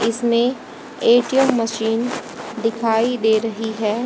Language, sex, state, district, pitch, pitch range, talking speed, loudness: Hindi, female, Haryana, Rohtak, 225 Hz, 225-240 Hz, 105 wpm, -19 LUFS